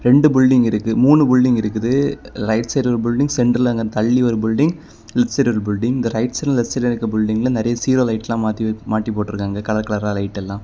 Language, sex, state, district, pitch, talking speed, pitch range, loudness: Tamil, male, Tamil Nadu, Kanyakumari, 115 Hz, 215 wpm, 110-125 Hz, -18 LUFS